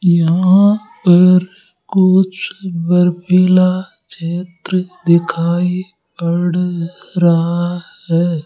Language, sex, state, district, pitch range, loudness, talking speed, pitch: Hindi, male, Rajasthan, Jaipur, 170-185 Hz, -14 LUFS, 65 wpm, 180 Hz